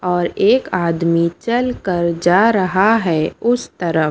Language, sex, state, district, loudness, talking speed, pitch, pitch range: Hindi, female, Punjab, Pathankot, -16 LUFS, 130 wpm, 180 Hz, 170-225 Hz